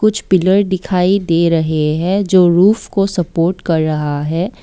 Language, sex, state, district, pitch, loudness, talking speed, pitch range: Hindi, female, Assam, Kamrup Metropolitan, 180 Hz, -14 LUFS, 155 wpm, 165-195 Hz